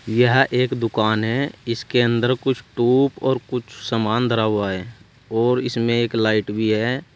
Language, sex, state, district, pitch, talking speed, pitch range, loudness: Hindi, male, Uttar Pradesh, Saharanpur, 120 Hz, 170 wpm, 110-125 Hz, -20 LUFS